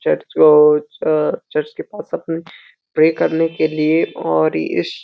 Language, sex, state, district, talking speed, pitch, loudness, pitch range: Hindi, male, Uttar Pradesh, Deoria, 165 wpm, 155 Hz, -16 LUFS, 150-165 Hz